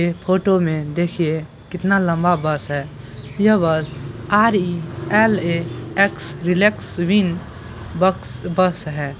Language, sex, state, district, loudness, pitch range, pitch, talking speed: Hindi, female, Bihar, Purnia, -19 LUFS, 150-185 Hz, 170 Hz, 125 wpm